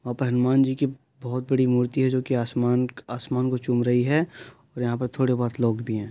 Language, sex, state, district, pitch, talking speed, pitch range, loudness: Hindi, male, Uttar Pradesh, Jyotiba Phule Nagar, 125 Hz, 255 wpm, 120-130 Hz, -24 LUFS